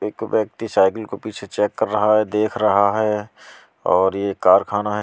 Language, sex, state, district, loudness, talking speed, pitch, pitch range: Hindi, male, Delhi, New Delhi, -19 LUFS, 190 wpm, 105 Hz, 100-110 Hz